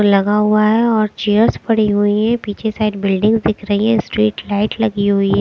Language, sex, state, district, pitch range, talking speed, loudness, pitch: Hindi, female, Chandigarh, Chandigarh, 205-220 Hz, 210 wpm, -15 LUFS, 210 Hz